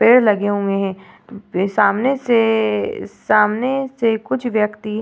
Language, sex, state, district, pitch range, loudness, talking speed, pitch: Hindi, female, Uttar Pradesh, Varanasi, 205-235 Hz, -17 LUFS, 145 wpm, 215 Hz